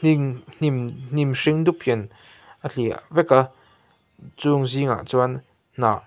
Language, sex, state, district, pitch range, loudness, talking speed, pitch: Mizo, male, Mizoram, Aizawl, 120-145 Hz, -22 LUFS, 140 wpm, 130 Hz